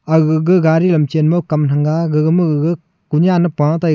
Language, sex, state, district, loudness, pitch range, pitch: Wancho, male, Arunachal Pradesh, Longding, -14 LUFS, 155-170 Hz, 160 Hz